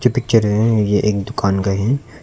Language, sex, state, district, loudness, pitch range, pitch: Hindi, male, Arunachal Pradesh, Longding, -17 LUFS, 100-115 Hz, 105 Hz